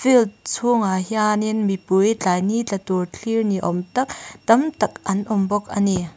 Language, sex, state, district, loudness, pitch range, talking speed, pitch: Mizo, female, Mizoram, Aizawl, -21 LUFS, 190-225 Hz, 185 wpm, 205 Hz